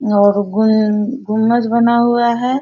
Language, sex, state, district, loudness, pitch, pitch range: Hindi, female, Bihar, Bhagalpur, -14 LUFS, 225 Hz, 215-235 Hz